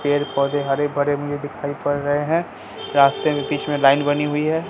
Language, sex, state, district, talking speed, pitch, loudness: Hindi, male, Bihar, Katihar, 190 wpm, 145 Hz, -20 LUFS